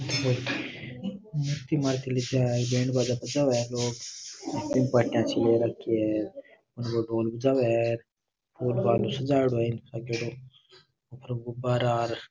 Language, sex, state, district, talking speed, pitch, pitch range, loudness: Rajasthani, male, Rajasthan, Nagaur, 135 wpm, 120 Hz, 115-130 Hz, -28 LUFS